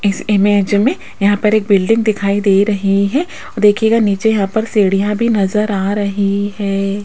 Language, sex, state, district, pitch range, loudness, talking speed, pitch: Hindi, female, Rajasthan, Jaipur, 200-215 Hz, -14 LUFS, 180 wpm, 205 Hz